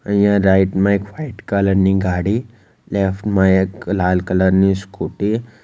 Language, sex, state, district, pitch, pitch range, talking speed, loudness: Gujarati, male, Gujarat, Valsad, 100 Hz, 95-105 Hz, 170 wpm, -17 LUFS